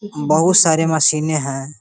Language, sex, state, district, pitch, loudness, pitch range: Hindi, male, Bihar, Gaya, 155 Hz, -14 LUFS, 150-160 Hz